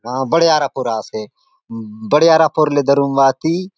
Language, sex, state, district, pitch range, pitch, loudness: Halbi, male, Chhattisgarh, Bastar, 120-160 Hz, 140 Hz, -15 LUFS